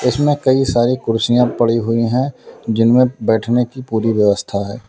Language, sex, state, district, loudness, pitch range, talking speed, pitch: Hindi, male, Uttar Pradesh, Lalitpur, -16 LUFS, 115-125 Hz, 160 wpm, 120 Hz